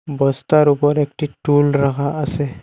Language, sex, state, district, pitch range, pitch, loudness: Bengali, male, Assam, Hailakandi, 140-150 Hz, 145 Hz, -17 LUFS